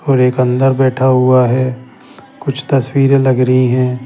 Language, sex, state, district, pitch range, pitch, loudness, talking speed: Hindi, male, Bihar, Patna, 125-135 Hz, 130 Hz, -12 LUFS, 150 wpm